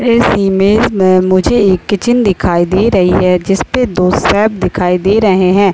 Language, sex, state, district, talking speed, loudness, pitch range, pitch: Hindi, female, Uttar Pradesh, Deoria, 180 wpm, -11 LUFS, 185-215 Hz, 195 Hz